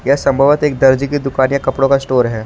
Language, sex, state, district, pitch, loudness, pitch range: Hindi, male, Jharkhand, Palamu, 135 Hz, -13 LUFS, 130-140 Hz